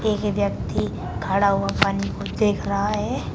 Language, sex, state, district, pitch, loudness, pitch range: Hindi, female, Uttar Pradesh, Shamli, 200 Hz, -23 LUFS, 200-210 Hz